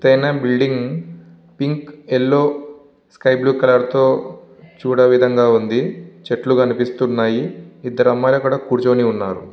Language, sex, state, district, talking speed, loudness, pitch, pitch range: Telugu, male, Andhra Pradesh, Visakhapatnam, 105 wpm, -17 LUFS, 130 Hz, 125-145 Hz